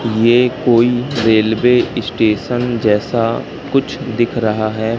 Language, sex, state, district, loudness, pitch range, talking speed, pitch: Hindi, male, Madhya Pradesh, Katni, -15 LUFS, 110-125 Hz, 110 wpm, 115 Hz